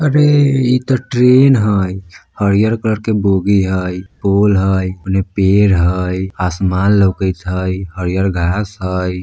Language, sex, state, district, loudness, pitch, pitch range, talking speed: Maithili, male, Bihar, Vaishali, -14 LUFS, 95 Hz, 95-105 Hz, 130 wpm